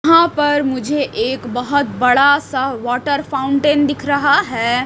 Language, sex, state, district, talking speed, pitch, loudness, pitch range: Hindi, female, Chhattisgarh, Raipur, 150 wpm, 285 Hz, -16 LUFS, 255-290 Hz